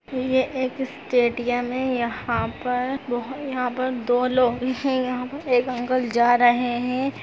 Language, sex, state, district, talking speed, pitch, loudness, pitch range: Hindi, female, Chhattisgarh, Sarguja, 155 wpm, 250 Hz, -23 LUFS, 245-260 Hz